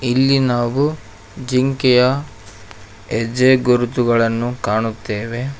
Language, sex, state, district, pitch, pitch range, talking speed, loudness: Kannada, male, Karnataka, Koppal, 120 Hz, 110-130 Hz, 65 wpm, -17 LUFS